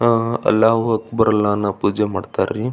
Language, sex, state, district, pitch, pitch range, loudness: Kannada, male, Karnataka, Belgaum, 110 Hz, 105-115 Hz, -18 LUFS